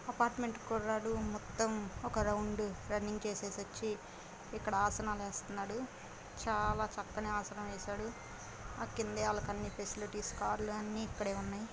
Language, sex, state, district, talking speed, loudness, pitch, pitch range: Telugu, female, Andhra Pradesh, Guntur, 120 wpm, -39 LUFS, 210 Hz, 205-220 Hz